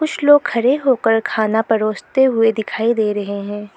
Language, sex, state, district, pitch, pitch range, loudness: Hindi, female, Arunachal Pradesh, Lower Dibang Valley, 225 Hz, 215-265 Hz, -16 LUFS